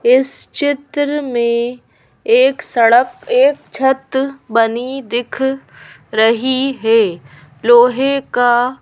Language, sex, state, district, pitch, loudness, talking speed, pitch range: Hindi, female, Madhya Pradesh, Bhopal, 255 Hz, -15 LUFS, 90 wpm, 235-275 Hz